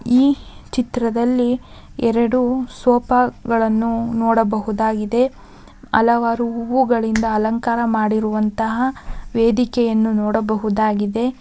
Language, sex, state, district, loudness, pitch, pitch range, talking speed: Kannada, female, Karnataka, Gulbarga, -18 LUFS, 230 Hz, 220-245 Hz, 65 wpm